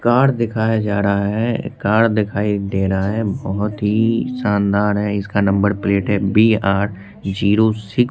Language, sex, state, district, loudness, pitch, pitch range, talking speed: Hindi, male, Bihar, Katihar, -18 LUFS, 105 Hz, 100-110 Hz, 170 wpm